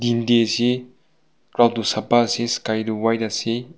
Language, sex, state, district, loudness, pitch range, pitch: Nagamese, male, Nagaland, Kohima, -20 LUFS, 110-120 Hz, 115 Hz